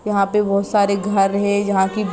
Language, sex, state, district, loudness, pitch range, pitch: Hindi, female, Jharkhand, Sahebganj, -18 LUFS, 200-205 Hz, 200 Hz